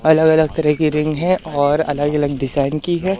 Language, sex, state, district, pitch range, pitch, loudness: Hindi, male, Madhya Pradesh, Katni, 145-160 Hz, 155 Hz, -17 LUFS